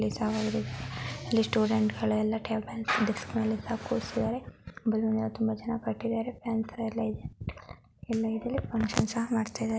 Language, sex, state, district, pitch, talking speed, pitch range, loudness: Kannada, female, Karnataka, Gulbarga, 220 Hz, 120 wpm, 215-225 Hz, -31 LUFS